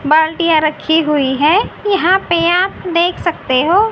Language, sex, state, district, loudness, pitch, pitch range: Hindi, female, Haryana, Rohtak, -14 LUFS, 335 Hz, 305-370 Hz